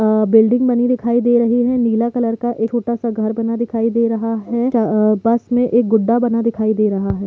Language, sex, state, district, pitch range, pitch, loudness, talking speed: Hindi, female, Jharkhand, Sahebganj, 225-240 Hz, 230 Hz, -16 LUFS, 230 wpm